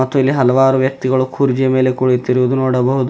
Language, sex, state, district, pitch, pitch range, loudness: Kannada, male, Karnataka, Bidar, 130 Hz, 130-135 Hz, -14 LUFS